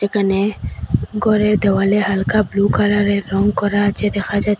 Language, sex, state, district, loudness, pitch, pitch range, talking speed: Bengali, female, Assam, Hailakandi, -17 LUFS, 205 Hz, 200-210 Hz, 155 wpm